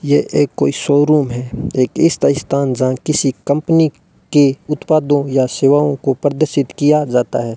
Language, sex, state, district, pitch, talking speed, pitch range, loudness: Hindi, male, Rajasthan, Bikaner, 140 Hz, 160 wpm, 130-150 Hz, -15 LUFS